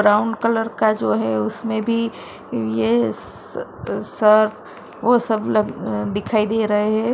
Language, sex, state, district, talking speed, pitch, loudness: Hindi, female, Maharashtra, Mumbai Suburban, 145 wpm, 215 Hz, -20 LUFS